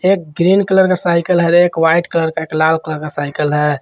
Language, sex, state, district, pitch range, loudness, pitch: Hindi, male, Jharkhand, Ranchi, 155-175 Hz, -14 LUFS, 165 Hz